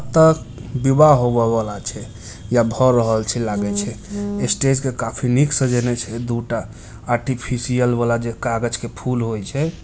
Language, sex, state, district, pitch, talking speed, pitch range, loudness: Hindi, male, Bihar, Muzaffarpur, 120 Hz, 165 wpm, 115-130 Hz, -19 LUFS